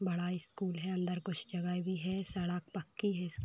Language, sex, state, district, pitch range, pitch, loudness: Hindi, female, Uttar Pradesh, Varanasi, 180-190 Hz, 180 Hz, -37 LUFS